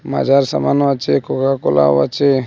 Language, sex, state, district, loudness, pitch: Bengali, male, Assam, Hailakandi, -15 LUFS, 130 Hz